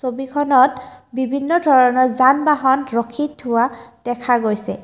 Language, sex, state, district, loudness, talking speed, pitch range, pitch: Assamese, female, Assam, Kamrup Metropolitan, -17 LUFS, 110 wpm, 245-275 Hz, 255 Hz